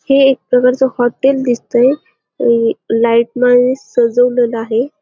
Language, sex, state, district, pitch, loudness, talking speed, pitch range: Marathi, female, Maharashtra, Dhule, 245 Hz, -13 LUFS, 105 wpm, 235-260 Hz